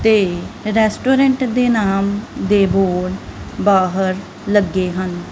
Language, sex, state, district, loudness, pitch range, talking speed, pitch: Punjabi, female, Punjab, Kapurthala, -17 LUFS, 185-220 Hz, 100 wpm, 200 Hz